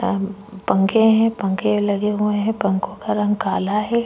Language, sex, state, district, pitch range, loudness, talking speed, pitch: Hindi, female, Maharashtra, Chandrapur, 195-220 Hz, -19 LUFS, 160 wpm, 210 Hz